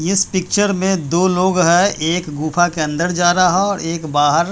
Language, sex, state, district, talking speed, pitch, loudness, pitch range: Hindi, male, Bihar, Patna, 210 wpm, 175 Hz, -16 LUFS, 165-185 Hz